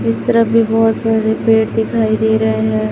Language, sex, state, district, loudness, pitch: Hindi, male, Chhattisgarh, Raipur, -14 LUFS, 115 Hz